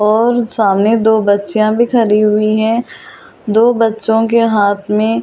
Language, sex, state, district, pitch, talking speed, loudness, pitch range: Hindi, female, Delhi, New Delhi, 220 Hz, 160 wpm, -12 LUFS, 210-230 Hz